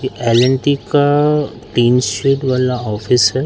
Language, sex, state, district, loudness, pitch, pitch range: Hindi, male, Madhya Pradesh, Katni, -15 LUFS, 130 Hz, 120-140 Hz